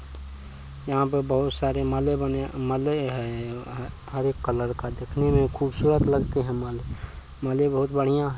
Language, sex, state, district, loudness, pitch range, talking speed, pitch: Hindi, male, Bihar, Purnia, -26 LUFS, 120-140 Hz, 165 wpm, 135 Hz